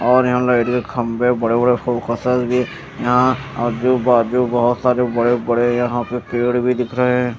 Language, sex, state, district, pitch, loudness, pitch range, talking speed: Hindi, male, Chandigarh, Chandigarh, 125 Hz, -17 LUFS, 120-125 Hz, 180 wpm